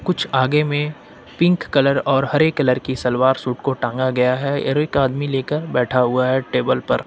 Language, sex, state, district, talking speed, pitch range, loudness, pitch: Hindi, male, Jharkhand, Ranchi, 205 wpm, 130-145 Hz, -19 LUFS, 135 Hz